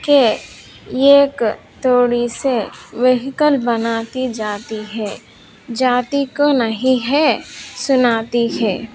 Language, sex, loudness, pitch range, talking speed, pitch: Hindi, female, -17 LUFS, 230-270 Hz, 95 wpm, 245 Hz